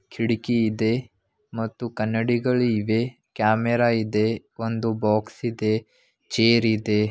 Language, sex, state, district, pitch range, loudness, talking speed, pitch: Kannada, male, Karnataka, Belgaum, 110-120 Hz, -23 LUFS, 100 wpm, 115 Hz